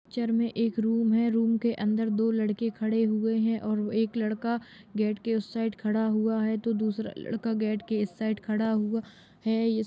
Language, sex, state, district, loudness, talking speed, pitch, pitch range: Hindi, female, Bihar, Lakhisarai, -28 LUFS, 215 wpm, 220 Hz, 215-225 Hz